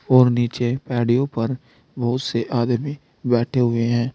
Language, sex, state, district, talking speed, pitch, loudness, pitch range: Hindi, male, Uttar Pradesh, Saharanpur, 145 wpm, 120 Hz, -21 LUFS, 120-130 Hz